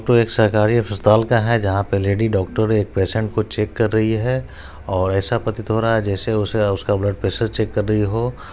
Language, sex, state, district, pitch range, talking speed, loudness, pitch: Maithili, male, Bihar, Supaul, 100-115 Hz, 225 wpm, -19 LUFS, 110 Hz